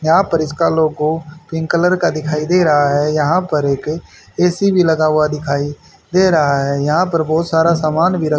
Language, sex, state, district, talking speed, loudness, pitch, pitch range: Hindi, male, Haryana, Rohtak, 205 wpm, -15 LUFS, 155 Hz, 150-170 Hz